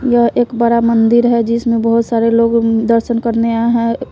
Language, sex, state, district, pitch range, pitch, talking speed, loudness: Hindi, female, Bihar, West Champaran, 230-235 Hz, 230 Hz, 190 wpm, -13 LUFS